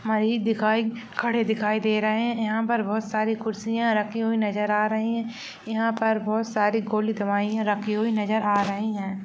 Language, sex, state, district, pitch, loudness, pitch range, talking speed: Hindi, female, Chhattisgarh, Rajnandgaon, 220 Hz, -25 LUFS, 210-225 Hz, 190 wpm